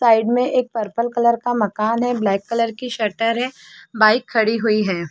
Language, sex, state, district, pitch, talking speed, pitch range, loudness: Hindi, female, Chhattisgarh, Bastar, 230 Hz, 200 wpm, 215-245 Hz, -19 LUFS